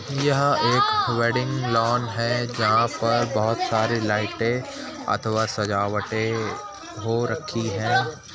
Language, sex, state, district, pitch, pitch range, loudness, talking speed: Hindi, male, Uttar Pradesh, Budaun, 115 Hz, 110-120 Hz, -23 LUFS, 110 wpm